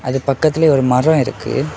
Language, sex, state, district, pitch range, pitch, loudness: Tamil, male, Tamil Nadu, Kanyakumari, 130-155 Hz, 135 Hz, -15 LUFS